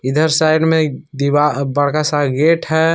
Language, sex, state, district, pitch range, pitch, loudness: Hindi, male, Jharkhand, Palamu, 145-160 Hz, 155 Hz, -15 LUFS